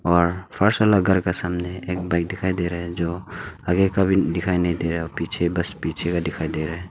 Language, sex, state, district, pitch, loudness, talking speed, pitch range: Hindi, male, Arunachal Pradesh, Longding, 90 Hz, -22 LUFS, 245 wpm, 85-95 Hz